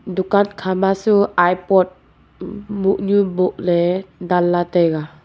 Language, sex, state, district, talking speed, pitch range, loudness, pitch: Wancho, female, Arunachal Pradesh, Longding, 115 wpm, 175-195 Hz, -17 LUFS, 185 Hz